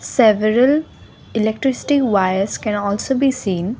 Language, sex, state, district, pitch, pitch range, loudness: English, female, Assam, Kamrup Metropolitan, 220 Hz, 205-265 Hz, -17 LUFS